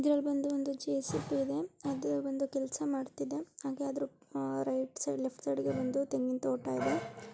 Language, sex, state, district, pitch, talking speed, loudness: Kannada, female, Karnataka, Dharwad, 265 Hz, 165 wpm, -35 LUFS